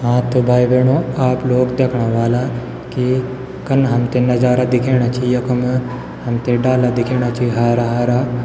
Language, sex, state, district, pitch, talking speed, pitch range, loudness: Garhwali, male, Uttarakhand, Tehri Garhwal, 125 Hz, 150 wpm, 120-125 Hz, -16 LUFS